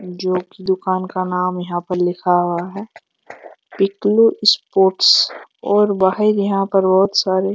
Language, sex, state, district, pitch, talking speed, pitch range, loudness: Hindi, male, Jharkhand, Jamtara, 190 Hz, 120 wpm, 180-200 Hz, -16 LUFS